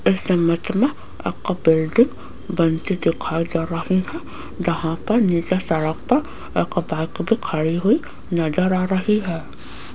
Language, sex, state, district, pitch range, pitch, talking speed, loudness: Hindi, female, Rajasthan, Jaipur, 165-190 Hz, 175 Hz, 145 wpm, -21 LUFS